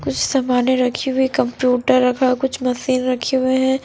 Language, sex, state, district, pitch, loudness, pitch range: Hindi, female, Punjab, Fazilka, 255 Hz, -18 LUFS, 250-265 Hz